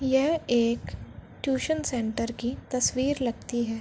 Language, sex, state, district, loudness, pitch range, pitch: Hindi, female, Uttar Pradesh, Varanasi, -27 LUFS, 235-265 Hz, 250 Hz